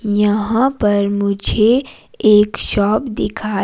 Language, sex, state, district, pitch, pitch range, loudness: Hindi, female, Himachal Pradesh, Shimla, 210 Hz, 205-225 Hz, -15 LUFS